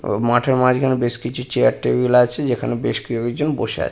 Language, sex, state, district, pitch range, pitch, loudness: Bengali, male, West Bengal, Purulia, 115-125 Hz, 120 Hz, -19 LUFS